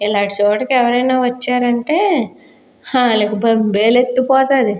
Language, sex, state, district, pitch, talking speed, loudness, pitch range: Telugu, female, Andhra Pradesh, Guntur, 245 Hz, 90 wpm, -15 LUFS, 210-255 Hz